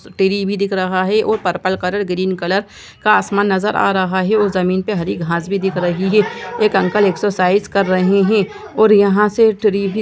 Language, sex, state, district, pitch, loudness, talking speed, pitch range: Hindi, female, Chhattisgarh, Sukma, 195 Hz, -16 LUFS, 210 wpm, 185-210 Hz